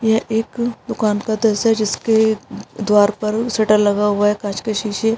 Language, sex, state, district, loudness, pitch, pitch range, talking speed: Hindi, female, Bihar, East Champaran, -18 LUFS, 215 Hz, 210-225 Hz, 195 wpm